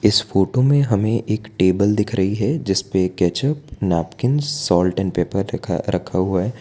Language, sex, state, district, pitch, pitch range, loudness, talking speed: Hindi, male, Gujarat, Valsad, 100 Hz, 95-115 Hz, -19 LUFS, 170 wpm